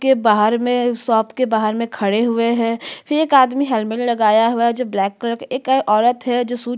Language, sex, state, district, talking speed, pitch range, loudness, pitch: Hindi, female, Chhattisgarh, Sukma, 240 wpm, 220-250 Hz, -17 LUFS, 235 Hz